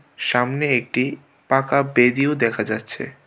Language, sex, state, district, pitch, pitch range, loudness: Bengali, male, Tripura, West Tripura, 125 Hz, 115-140 Hz, -20 LUFS